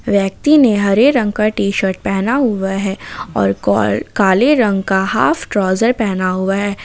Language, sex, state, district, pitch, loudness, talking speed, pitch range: Hindi, female, Jharkhand, Ranchi, 200 Hz, -15 LUFS, 175 wpm, 190-225 Hz